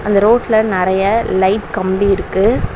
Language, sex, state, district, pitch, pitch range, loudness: Tamil, female, Tamil Nadu, Chennai, 200 Hz, 190-220 Hz, -14 LUFS